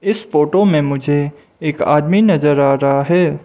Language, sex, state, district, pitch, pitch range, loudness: Hindi, male, Mizoram, Aizawl, 150 Hz, 145-180 Hz, -14 LUFS